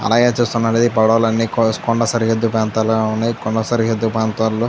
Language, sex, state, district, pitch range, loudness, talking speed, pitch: Telugu, male, Andhra Pradesh, Chittoor, 110-115 Hz, -17 LUFS, 140 wpm, 115 Hz